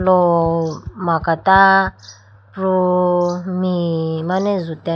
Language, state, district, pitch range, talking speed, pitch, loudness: Idu Mishmi, Arunachal Pradesh, Lower Dibang Valley, 160-185 Hz, 70 wpm, 175 Hz, -17 LUFS